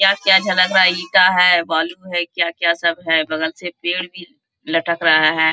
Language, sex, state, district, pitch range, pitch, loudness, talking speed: Hindi, female, Bihar, Bhagalpur, 165-180 Hz, 175 Hz, -16 LUFS, 225 wpm